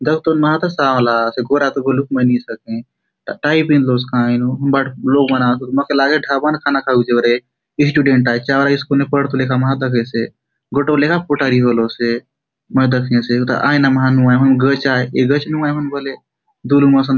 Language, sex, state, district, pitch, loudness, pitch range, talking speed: Halbi, male, Chhattisgarh, Bastar, 135 Hz, -15 LUFS, 125-140 Hz, 200 wpm